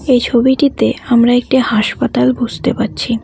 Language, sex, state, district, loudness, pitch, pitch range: Bengali, female, West Bengal, Cooch Behar, -13 LUFS, 240 Hz, 230-260 Hz